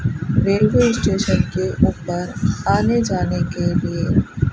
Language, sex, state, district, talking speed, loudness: Hindi, female, Rajasthan, Bikaner, 105 wpm, -19 LUFS